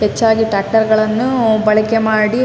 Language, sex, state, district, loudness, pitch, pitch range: Kannada, female, Karnataka, Raichur, -14 LUFS, 220 Hz, 215-225 Hz